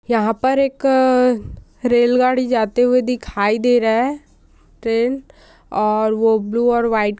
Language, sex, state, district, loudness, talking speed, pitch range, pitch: Hindi, female, Uttar Pradesh, Gorakhpur, -17 LUFS, 150 wpm, 225-255 Hz, 240 Hz